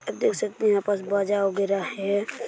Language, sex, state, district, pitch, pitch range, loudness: Hindi, male, Chhattisgarh, Sarguja, 200 Hz, 195-205 Hz, -25 LUFS